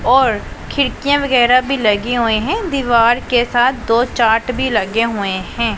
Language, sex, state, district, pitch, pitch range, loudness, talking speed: Hindi, female, Punjab, Pathankot, 240 Hz, 230-260 Hz, -15 LUFS, 165 wpm